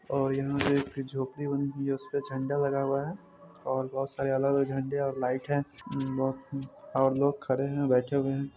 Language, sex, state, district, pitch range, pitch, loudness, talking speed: Hindi, male, Bihar, Muzaffarpur, 135-140 Hz, 135 Hz, -30 LUFS, 195 wpm